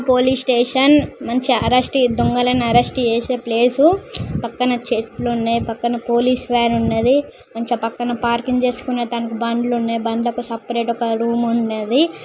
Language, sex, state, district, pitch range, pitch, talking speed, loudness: Telugu, female, Andhra Pradesh, Chittoor, 235-250 Hz, 240 Hz, 125 wpm, -18 LUFS